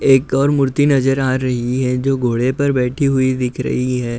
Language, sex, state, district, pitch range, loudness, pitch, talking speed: Hindi, male, Uttar Pradesh, Budaun, 125-135 Hz, -16 LUFS, 130 Hz, 215 wpm